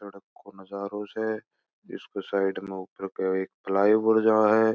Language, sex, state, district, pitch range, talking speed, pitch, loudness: Marwari, male, Rajasthan, Churu, 95-110 Hz, 150 wpm, 100 Hz, -26 LUFS